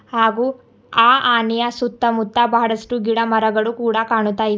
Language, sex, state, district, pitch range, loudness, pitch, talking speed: Kannada, female, Karnataka, Bidar, 225-240 Hz, -17 LUFS, 230 Hz, 105 wpm